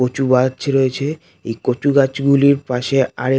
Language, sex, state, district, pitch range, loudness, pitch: Bengali, male, West Bengal, North 24 Parganas, 125-140 Hz, -17 LUFS, 135 Hz